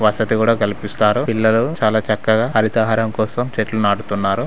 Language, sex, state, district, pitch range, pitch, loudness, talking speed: Telugu, male, Telangana, Karimnagar, 105-115 Hz, 110 Hz, -17 LUFS, 135 wpm